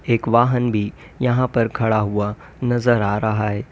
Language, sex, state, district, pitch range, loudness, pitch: Hindi, male, Uttar Pradesh, Lalitpur, 105-120 Hz, -20 LUFS, 115 Hz